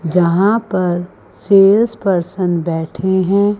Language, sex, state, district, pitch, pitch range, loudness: Hindi, female, Chandigarh, Chandigarh, 185 Hz, 175-200 Hz, -15 LUFS